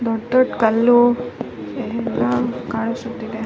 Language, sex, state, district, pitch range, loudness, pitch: Kannada, female, Karnataka, Raichur, 225-240 Hz, -19 LUFS, 230 Hz